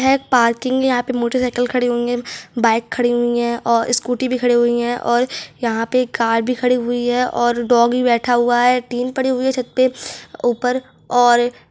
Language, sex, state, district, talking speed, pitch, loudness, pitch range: Hindi, male, Chhattisgarh, Rajnandgaon, 215 wpm, 245 Hz, -17 LUFS, 240-250 Hz